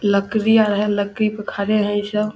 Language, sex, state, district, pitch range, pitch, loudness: Hindi, male, Bihar, Samastipur, 205-215 Hz, 210 Hz, -19 LUFS